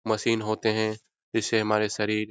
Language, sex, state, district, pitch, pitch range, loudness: Hindi, male, Bihar, Jahanabad, 110 Hz, 105-110 Hz, -26 LUFS